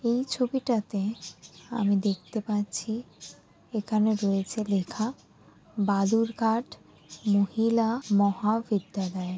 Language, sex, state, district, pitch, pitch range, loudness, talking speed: Bengali, female, West Bengal, Dakshin Dinajpur, 210 Hz, 195-225 Hz, -28 LUFS, 70 wpm